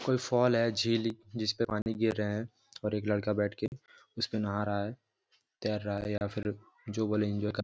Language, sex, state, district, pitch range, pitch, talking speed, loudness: Hindi, male, Jharkhand, Jamtara, 105-115 Hz, 105 Hz, 210 wpm, -32 LUFS